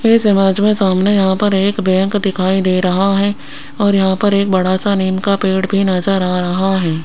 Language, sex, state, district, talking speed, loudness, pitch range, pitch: Hindi, female, Rajasthan, Jaipur, 210 wpm, -14 LUFS, 185-200 Hz, 195 Hz